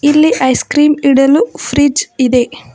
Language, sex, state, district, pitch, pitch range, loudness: Kannada, female, Karnataka, Bangalore, 280 Hz, 255-295 Hz, -11 LUFS